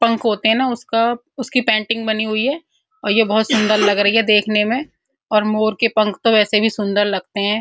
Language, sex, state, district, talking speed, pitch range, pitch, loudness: Hindi, female, Uttar Pradesh, Muzaffarnagar, 230 wpm, 210-235 Hz, 220 Hz, -17 LUFS